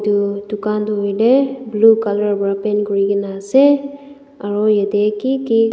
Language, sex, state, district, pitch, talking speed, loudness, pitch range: Nagamese, female, Nagaland, Dimapur, 210 Hz, 135 wpm, -16 LUFS, 205-255 Hz